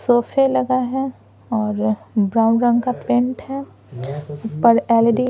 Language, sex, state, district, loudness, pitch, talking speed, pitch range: Hindi, female, Bihar, Patna, -19 LUFS, 225 Hz, 135 wpm, 145-245 Hz